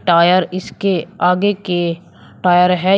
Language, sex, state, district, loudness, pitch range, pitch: Hindi, male, Uttar Pradesh, Shamli, -16 LUFS, 175-190 Hz, 180 Hz